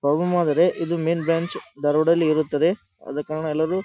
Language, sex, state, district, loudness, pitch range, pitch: Kannada, male, Karnataka, Dharwad, -22 LUFS, 150-170 Hz, 160 Hz